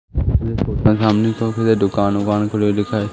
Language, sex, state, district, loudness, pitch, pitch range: Hindi, male, Madhya Pradesh, Umaria, -17 LUFS, 105 Hz, 100-110 Hz